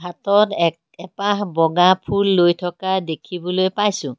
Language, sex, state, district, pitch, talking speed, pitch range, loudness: Assamese, female, Assam, Kamrup Metropolitan, 180 Hz, 130 wpm, 170-200 Hz, -18 LUFS